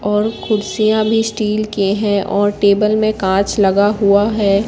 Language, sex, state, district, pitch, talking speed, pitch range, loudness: Hindi, female, Madhya Pradesh, Katni, 205 Hz, 165 wpm, 200-215 Hz, -15 LUFS